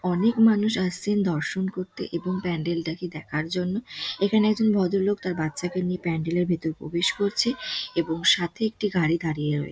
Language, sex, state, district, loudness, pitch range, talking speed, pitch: Bengali, female, West Bengal, Dakshin Dinajpur, -25 LUFS, 170-205 Hz, 185 wpm, 180 Hz